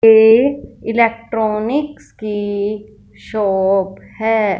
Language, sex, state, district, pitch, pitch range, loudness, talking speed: Hindi, female, Punjab, Fazilka, 220 Hz, 205-225 Hz, -16 LUFS, 65 wpm